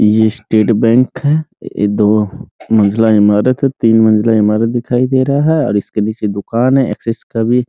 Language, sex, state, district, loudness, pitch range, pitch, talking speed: Hindi, male, Bihar, Muzaffarpur, -13 LUFS, 105-125 Hz, 115 Hz, 180 wpm